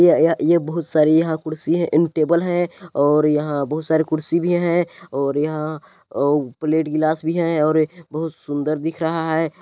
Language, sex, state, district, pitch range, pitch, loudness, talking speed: Hindi, male, Chhattisgarh, Balrampur, 150-170 Hz, 160 Hz, -20 LUFS, 200 wpm